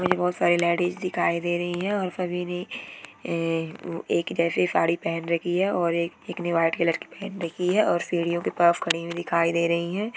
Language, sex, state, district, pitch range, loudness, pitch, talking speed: Hindi, female, Bihar, Jahanabad, 170-180 Hz, -25 LUFS, 170 Hz, 225 wpm